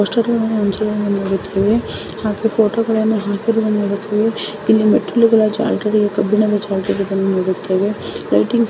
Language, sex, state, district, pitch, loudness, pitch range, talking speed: Kannada, female, Karnataka, Raichur, 210 Hz, -17 LUFS, 200-220 Hz, 125 wpm